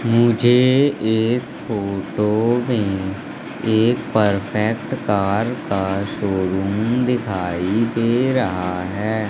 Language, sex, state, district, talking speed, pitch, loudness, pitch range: Hindi, male, Madhya Pradesh, Katni, 85 wpm, 110 Hz, -19 LUFS, 100-120 Hz